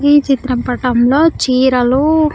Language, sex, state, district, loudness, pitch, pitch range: Telugu, female, Andhra Pradesh, Sri Satya Sai, -13 LUFS, 265 Hz, 250-290 Hz